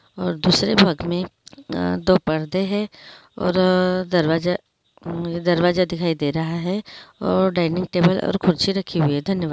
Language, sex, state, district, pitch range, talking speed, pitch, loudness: Hindi, female, Uttarakhand, Uttarkashi, 170-185 Hz, 140 wpm, 180 Hz, -20 LUFS